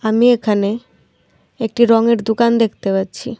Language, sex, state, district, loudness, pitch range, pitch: Bengali, female, Tripura, Dhalai, -15 LUFS, 210-235 Hz, 225 Hz